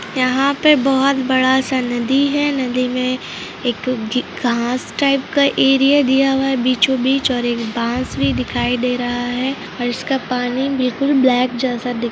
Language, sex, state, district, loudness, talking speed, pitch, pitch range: Hindi, female, Jharkhand, Jamtara, -17 LUFS, 185 wpm, 255 Hz, 245-270 Hz